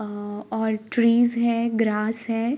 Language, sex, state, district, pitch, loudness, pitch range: Hindi, female, Uttar Pradesh, Varanasi, 225 Hz, -23 LUFS, 215-235 Hz